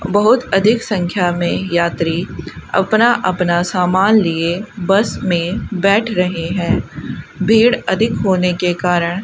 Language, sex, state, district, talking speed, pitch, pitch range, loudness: Hindi, female, Rajasthan, Bikaner, 130 wpm, 185 Hz, 175-205 Hz, -15 LUFS